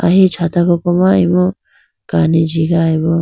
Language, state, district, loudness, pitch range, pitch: Idu Mishmi, Arunachal Pradesh, Lower Dibang Valley, -13 LUFS, 165-180 Hz, 175 Hz